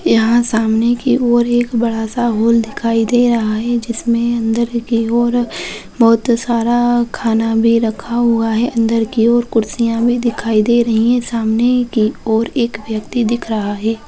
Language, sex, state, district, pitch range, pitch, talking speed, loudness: Hindi, female, Bihar, Bhagalpur, 225-240 Hz, 230 Hz, 170 wpm, -15 LUFS